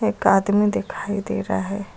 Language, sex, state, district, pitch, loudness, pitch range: Hindi, female, Uttar Pradesh, Lucknow, 200 Hz, -21 LUFS, 195-205 Hz